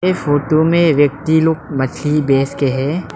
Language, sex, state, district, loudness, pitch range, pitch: Hindi, male, Arunachal Pradesh, Lower Dibang Valley, -15 LUFS, 140-160 Hz, 150 Hz